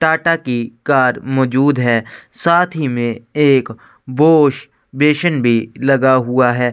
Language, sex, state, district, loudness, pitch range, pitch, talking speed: Hindi, male, Chhattisgarh, Korba, -14 LUFS, 120-150 Hz, 135 Hz, 135 wpm